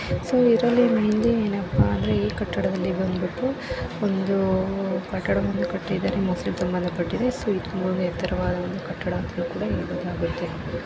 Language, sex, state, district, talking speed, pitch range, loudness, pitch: Kannada, female, Karnataka, Raichur, 100 wpm, 180-215 Hz, -24 LUFS, 185 Hz